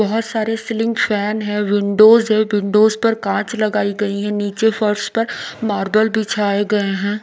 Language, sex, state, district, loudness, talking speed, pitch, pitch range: Hindi, female, Odisha, Nuapada, -17 LUFS, 165 wpm, 215 Hz, 205-220 Hz